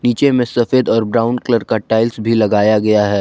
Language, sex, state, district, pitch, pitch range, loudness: Hindi, male, Jharkhand, Garhwa, 115 Hz, 110-120 Hz, -14 LUFS